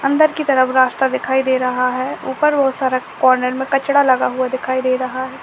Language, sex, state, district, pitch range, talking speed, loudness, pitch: Hindi, female, Chhattisgarh, Jashpur, 255-275 Hz, 220 wpm, -16 LUFS, 260 Hz